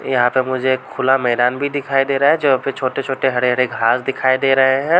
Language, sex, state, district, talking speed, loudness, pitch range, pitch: Hindi, male, Uttar Pradesh, Varanasi, 250 wpm, -16 LUFS, 130-135 Hz, 135 Hz